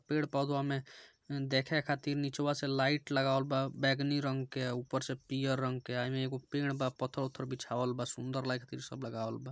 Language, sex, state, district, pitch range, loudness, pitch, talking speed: Bhojpuri, male, Bihar, Gopalganj, 130-140 Hz, -35 LUFS, 135 Hz, 195 wpm